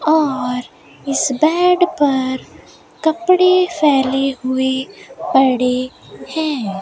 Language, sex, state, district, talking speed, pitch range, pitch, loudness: Hindi, female, Rajasthan, Bikaner, 80 wpm, 260-315 Hz, 275 Hz, -16 LUFS